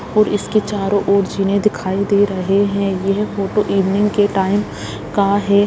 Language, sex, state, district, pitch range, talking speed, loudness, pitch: Hindi, female, Bihar, Gaya, 195-205 Hz, 170 wpm, -17 LUFS, 200 Hz